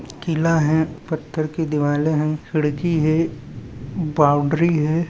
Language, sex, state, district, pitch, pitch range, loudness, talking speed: Hindi, male, Andhra Pradesh, Chittoor, 155 Hz, 150-165 Hz, -20 LUFS, 130 wpm